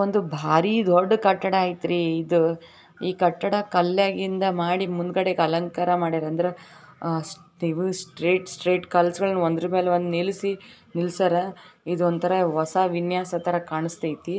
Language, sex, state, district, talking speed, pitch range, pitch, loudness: Kannada, female, Karnataka, Bijapur, 95 wpm, 170-185 Hz, 175 Hz, -24 LUFS